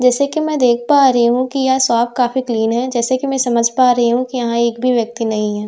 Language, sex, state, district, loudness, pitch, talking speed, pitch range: Hindi, female, Bihar, Katihar, -15 LUFS, 245 Hz, 285 wpm, 235-260 Hz